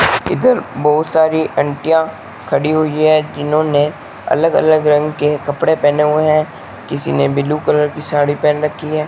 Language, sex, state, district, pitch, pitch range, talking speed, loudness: Hindi, male, Rajasthan, Bikaner, 150 Hz, 145-155 Hz, 165 wpm, -15 LUFS